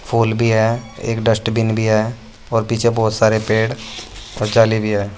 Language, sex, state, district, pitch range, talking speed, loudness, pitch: Hindi, male, Uttar Pradesh, Saharanpur, 110-115 Hz, 185 wpm, -17 LUFS, 110 Hz